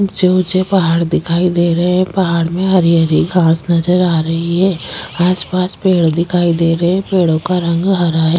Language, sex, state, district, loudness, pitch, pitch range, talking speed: Hindi, female, Chhattisgarh, Jashpur, -14 LUFS, 175 Hz, 170-185 Hz, 200 wpm